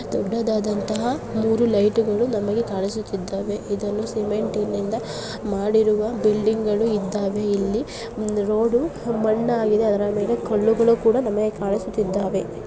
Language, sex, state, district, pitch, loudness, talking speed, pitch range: Kannada, female, Karnataka, Gulbarga, 215 Hz, -22 LUFS, 90 wpm, 205-225 Hz